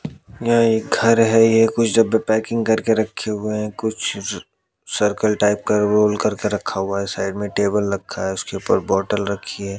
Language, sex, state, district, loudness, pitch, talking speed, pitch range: Hindi, male, Haryana, Jhajjar, -19 LUFS, 105 Hz, 190 wpm, 100-115 Hz